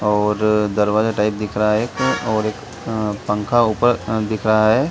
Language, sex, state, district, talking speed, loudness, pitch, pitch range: Hindi, male, Bihar, Saran, 195 wpm, -18 LUFS, 110 Hz, 105-110 Hz